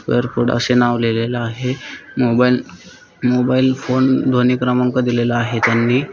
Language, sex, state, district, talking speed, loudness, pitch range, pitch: Marathi, male, Maharashtra, Solapur, 115 wpm, -16 LUFS, 120-125 Hz, 125 Hz